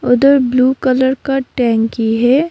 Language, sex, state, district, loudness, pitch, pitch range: Hindi, female, West Bengal, Darjeeling, -13 LUFS, 255 Hz, 240-270 Hz